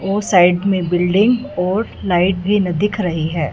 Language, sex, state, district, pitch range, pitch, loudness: Hindi, female, Punjab, Fazilka, 175-205 Hz, 185 Hz, -16 LUFS